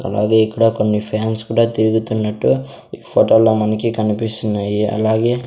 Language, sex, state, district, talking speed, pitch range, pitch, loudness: Telugu, male, Andhra Pradesh, Sri Satya Sai, 120 wpm, 105-110 Hz, 110 Hz, -16 LUFS